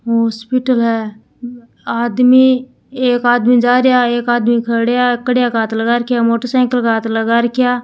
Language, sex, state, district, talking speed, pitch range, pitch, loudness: Hindi, female, Rajasthan, Churu, 170 wpm, 230-250 Hz, 240 Hz, -14 LUFS